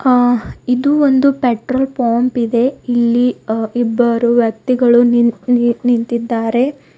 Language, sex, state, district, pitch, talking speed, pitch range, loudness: Kannada, female, Karnataka, Bidar, 240 Hz, 110 wpm, 235-250 Hz, -14 LUFS